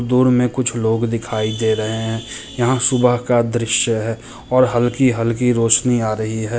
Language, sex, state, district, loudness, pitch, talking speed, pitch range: Hindi, male, Bihar, Muzaffarpur, -17 LUFS, 120 Hz, 175 wpm, 115-125 Hz